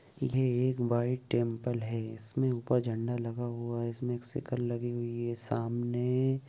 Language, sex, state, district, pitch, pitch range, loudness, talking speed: Bhojpuri, male, Bihar, Saran, 120 Hz, 120-125 Hz, -33 LUFS, 175 wpm